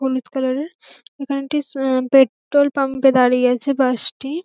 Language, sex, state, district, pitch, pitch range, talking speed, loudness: Bengali, female, West Bengal, North 24 Parganas, 270 Hz, 260-280 Hz, 160 wpm, -18 LUFS